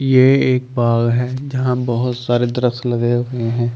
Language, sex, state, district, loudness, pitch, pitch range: Hindi, male, Delhi, New Delhi, -17 LUFS, 125 Hz, 120-130 Hz